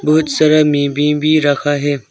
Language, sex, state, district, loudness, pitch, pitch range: Hindi, male, Arunachal Pradesh, Longding, -13 LUFS, 150 Hz, 145-155 Hz